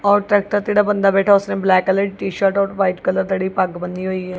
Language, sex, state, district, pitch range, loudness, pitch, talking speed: Punjabi, female, Punjab, Kapurthala, 185-205 Hz, -17 LUFS, 195 Hz, 285 wpm